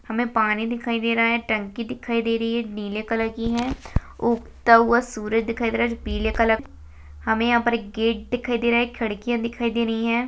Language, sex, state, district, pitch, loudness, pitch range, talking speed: Hindi, female, Chhattisgarh, Jashpur, 230 Hz, -23 LUFS, 220-235 Hz, 220 wpm